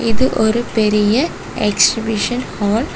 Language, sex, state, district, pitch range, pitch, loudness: Tamil, female, Tamil Nadu, Kanyakumari, 210-240 Hz, 220 Hz, -16 LUFS